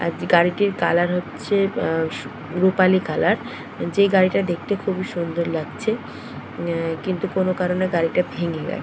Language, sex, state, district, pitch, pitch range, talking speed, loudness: Bengali, female, West Bengal, Purulia, 180 Hz, 170-190 Hz, 155 wpm, -21 LUFS